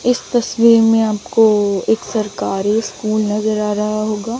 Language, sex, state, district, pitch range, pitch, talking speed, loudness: Hindi, female, Chandigarh, Chandigarh, 210-225 Hz, 215 Hz, 150 wpm, -16 LUFS